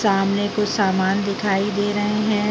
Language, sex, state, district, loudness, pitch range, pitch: Hindi, female, Bihar, Araria, -20 LUFS, 195-210 Hz, 205 Hz